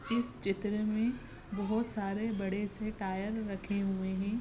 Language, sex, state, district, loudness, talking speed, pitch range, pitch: Hindi, female, Maharashtra, Sindhudurg, -35 LUFS, 135 wpm, 195-220 Hz, 205 Hz